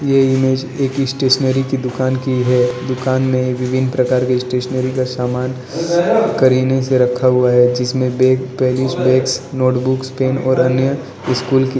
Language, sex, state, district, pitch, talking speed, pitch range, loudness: Hindi, male, Arunachal Pradesh, Lower Dibang Valley, 130 Hz, 155 wpm, 125-130 Hz, -16 LUFS